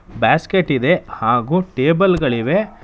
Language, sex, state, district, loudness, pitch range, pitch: Kannada, male, Karnataka, Bangalore, -17 LUFS, 135-185 Hz, 175 Hz